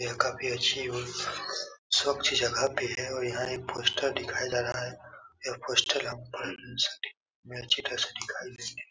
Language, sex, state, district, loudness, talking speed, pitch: Hindi, male, Uttar Pradesh, Etah, -30 LUFS, 160 wpm, 125 Hz